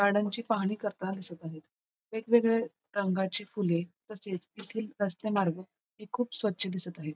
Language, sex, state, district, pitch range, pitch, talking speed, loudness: Marathi, female, Maharashtra, Pune, 185-215 Hz, 200 Hz, 140 wpm, -32 LUFS